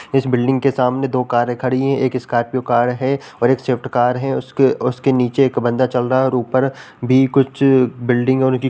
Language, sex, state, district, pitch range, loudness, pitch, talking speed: Hindi, male, Bihar, Samastipur, 125-135 Hz, -17 LUFS, 130 Hz, 220 wpm